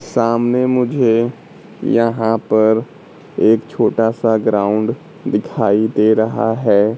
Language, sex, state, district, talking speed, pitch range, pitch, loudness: Hindi, male, Bihar, Kaimur, 105 wpm, 110-115 Hz, 115 Hz, -16 LUFS